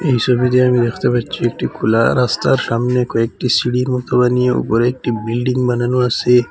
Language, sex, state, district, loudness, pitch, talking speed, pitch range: Bengali, male, Assam, Hailakandi, -16 LUFS, 125 Hz, 165 wpm, 120-125 Hz